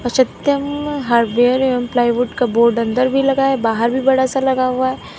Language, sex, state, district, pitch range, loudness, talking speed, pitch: Hindi, female, Uttar Pradesh, Lalitpur, 240-270 Hz, -16 LUFS, 195 wpm, 255 Hz